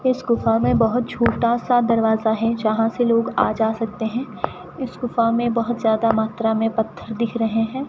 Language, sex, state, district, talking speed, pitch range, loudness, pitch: Hindi, female, Rajasthan, Bikaner, 200 wpm, 225-240 Hz, -20 LUFS, 230 Hz